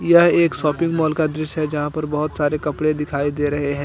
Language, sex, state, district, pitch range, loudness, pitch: Hindi, male, Jharkhand, Deoghar, 145-155 Hz, -20 LUFS, 150 Hz